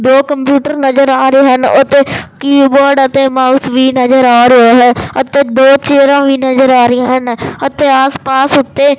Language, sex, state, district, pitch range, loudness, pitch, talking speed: Punjabi, male, Punjab, Fazilka, 255-280 Hz, -8 LUFS, 270 Hz, 185 wpm